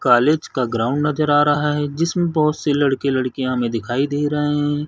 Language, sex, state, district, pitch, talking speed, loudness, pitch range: Hindi, male, Chhattisgarh, Sarguja, 145 Hz, 220 wpm, -19 LUFS, 130-150 Hz